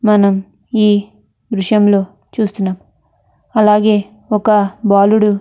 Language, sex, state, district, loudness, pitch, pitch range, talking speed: Telugu, female, Andhra Pradesh, Anantapur, -14 LUFS, 205 Hz, 200-215 Hz, 90 wpm